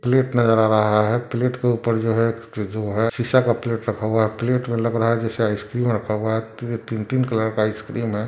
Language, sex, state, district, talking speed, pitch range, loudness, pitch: Hindi, male, Bihar, Sitamarhi, 255 wpm, 110-120 Hz, -21 LUFS, 115 Hz